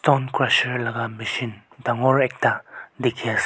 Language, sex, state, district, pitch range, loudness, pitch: Nagamese, male, Nagaland, Kohima, 115-135 Hz, -22 LUFS, 125 Hz